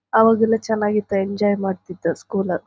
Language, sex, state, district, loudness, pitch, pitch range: Kannada, female, Karnataka, Chamarajanagar, -20 LUFS, 200 Hz, 190-220 Hz